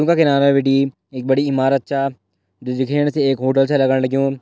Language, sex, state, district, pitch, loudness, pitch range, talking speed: Garhwali, male, Uttarakhand, Tehri Garhwal, 135 Hz, -17 LUFS, 130-140 Hz, 205 wpm